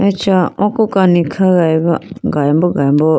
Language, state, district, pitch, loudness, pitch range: Idu Mishmi, Arunachal Pradesh, Lower Dibang Valley, 175 Hz, -13 LUFS, 160-195 Hz